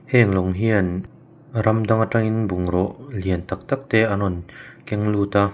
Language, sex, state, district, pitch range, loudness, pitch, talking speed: Mizo, male, Mizoram, Aizawl, 95-115 Hz, -21 LUFS, 105 Hz, 195 wpm